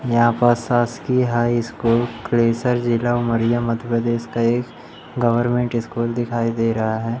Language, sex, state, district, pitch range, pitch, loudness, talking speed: Hindi, male, Madhya Pradesh, Umaria, 115-120 Hz, 120 Hz, -20 LUFS, 150 wpm